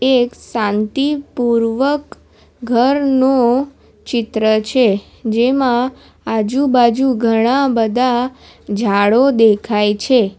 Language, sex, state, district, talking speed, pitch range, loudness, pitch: Gujarati, female, Gujarat, Valsad, 70 wpm, 220-260 Hz, -15 LUFS, 240 Hz